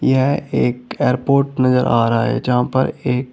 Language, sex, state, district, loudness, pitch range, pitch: Hindi, male, Uttar Pradesh, Shamli, -17 LUFS, 125-135 Hz, 125 Hz